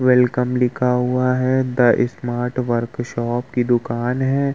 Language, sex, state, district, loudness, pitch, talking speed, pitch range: Hindi, male, Uttar Pradesh, Muzaffarnagar, -19 LUFS, 125 Hz, 130 wpm, 120-125 Hz